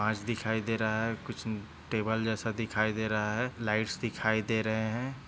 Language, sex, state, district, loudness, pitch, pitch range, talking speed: Hindi, male, Maharashtra, Dhule, -32 LUFS, 110 Hz, 110-115 Hz, 195 wpm